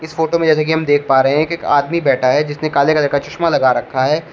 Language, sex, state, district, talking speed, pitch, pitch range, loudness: Hindi, male, Uttar Pradesh, Shamli, 305 wpm, 150 Hz, 140-160 Hz, -15 LUFS